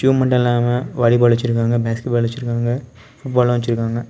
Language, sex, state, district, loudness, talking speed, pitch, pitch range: Tamil, male, Tamil Nadu, Kanyakumari, -18 LUFS, 145 wpm, 120 Hz, 115-125 Hz